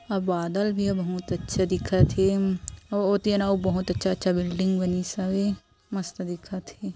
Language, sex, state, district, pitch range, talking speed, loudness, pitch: Hindi, female, Chhattisgarh, Korba, 180-195 Hz, 145 wpm, -26 LUFS, 190 Hz